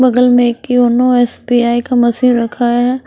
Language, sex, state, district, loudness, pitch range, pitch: Hindi, female, Himachal Pradesh, Shimla, -12 LUFS, 240-250 Hz, 245 Hz